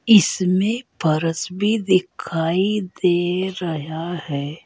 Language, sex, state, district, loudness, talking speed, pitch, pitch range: Hindi, female, Uttar Pradesh, Saharanpur, -21 LUFS, 90 wpm, 180 Hz, 165-195 Hz